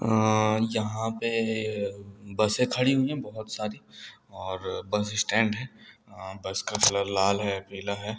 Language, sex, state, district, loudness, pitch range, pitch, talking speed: Hindi, male, Uttar Pradesh, Hamirpur, -27 LUFS, 100-110 Hz, 105 Hz, 140 wpm